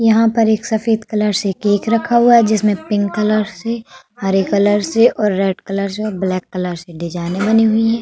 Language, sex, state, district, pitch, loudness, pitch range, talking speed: Hindi, female, Uttar Pradesh, Budaun, 210 Hz, -16 LUFS, 195-225 Hz, 200 wpm